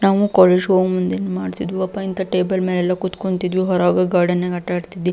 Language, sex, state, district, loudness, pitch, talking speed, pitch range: Kannada, female, Karnataka, Belgaum, -18 LUFS, 180 Hz, 150 wpm, 180-185 Hz